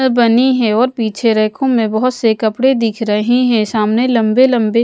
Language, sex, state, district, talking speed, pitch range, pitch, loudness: Hindi, female, Odisha, Malkangiri, 185 wpm, 220-250 Hz, 230 Hz, -13 LUFS